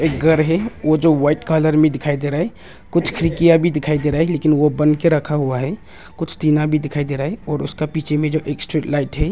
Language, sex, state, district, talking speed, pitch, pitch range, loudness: Hindi, male, Arunachal Pradesh, Longding, 255 wpm, 155 Hz, 145-160 Hz, -18 LUFS